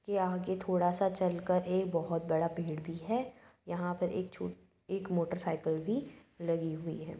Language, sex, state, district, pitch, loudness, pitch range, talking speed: Hindi, female, Uttar Pradesh, Budaun, 175 Hz, -35 LUFS, 165-190 Hz, 185 wpm